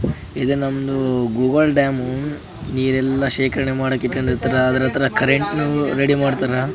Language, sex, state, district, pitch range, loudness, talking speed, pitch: Kannada, male, Karnataka, Raichur, 130-140 Hz, -19 LUFS, 115 wpm, 135 Hz